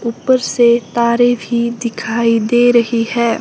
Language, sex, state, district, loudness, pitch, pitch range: Hindi, female, Himachal Pradesh, Shimla, -14 LUFS, 235 Hz, 230-240 Hz